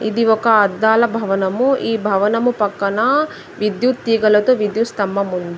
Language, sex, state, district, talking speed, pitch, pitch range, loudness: Telugu, female, Telangana, Adilabad, 130 wpm, 220 Hz, 200-230 Hz, -16 LUFS